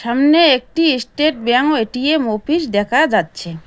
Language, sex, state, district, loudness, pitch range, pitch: Bengali, female, West Bengal, Cooch Behar, -15 LUFS, 230-305 Hz, 255 Hz